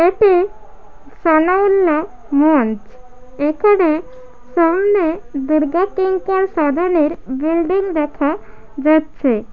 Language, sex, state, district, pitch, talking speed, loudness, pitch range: Bengali, female, West Bengal, Malda, 315 Hz, 55 wpm, -16 LUFS, 290-370 Hz